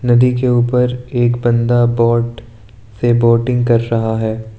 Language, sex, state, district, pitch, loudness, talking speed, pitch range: Hindi, male, Arunachal Pradesh, Lower Dibang Valley, 120 Hz, -14 LUFS, 145 wpm, 115-120 Hz